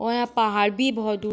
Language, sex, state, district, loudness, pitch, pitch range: Hindi, female, Jharkhand, Sahebganj, -23 LUFS, 225 Hz, 210-240 Hz